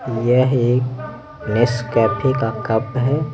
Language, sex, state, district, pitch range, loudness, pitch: Hindi, male, Bihar, Patna, 115-130 Hz, -18 LUFS, 125 Hz